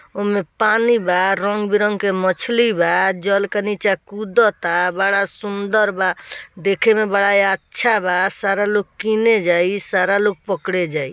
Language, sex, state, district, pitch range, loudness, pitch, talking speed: Bhojpuri, female, Bihar, East Champaran, 190-210 Hz, -18 LUFS, 200 Hz, 155 wpm